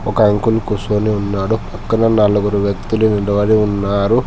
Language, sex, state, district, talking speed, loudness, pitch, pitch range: Telugu, male, Telangana, Hyderabad, 125 wpm, -15 LUFS, 105 Hz, 100-110 Hz